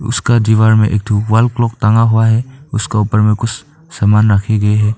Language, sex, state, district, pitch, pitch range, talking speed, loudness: Hindi, male, Arunachal Pradesh, Papum Pare, 110 Hz, 105-115 Hz, 215 wpm, -13 LUFS